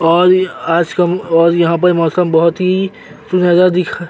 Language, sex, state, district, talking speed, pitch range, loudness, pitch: Hindi, male, Uttar Pradesh, Jyotiba Phule Nagar, 175 wpm, 165-185 Hz, -13 LUFS, 175 Hz